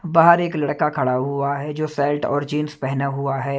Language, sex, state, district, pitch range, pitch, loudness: Hindi, male, Punjab, Kapurthala, 140-150 Hz, 145 Hz, -20 LUFS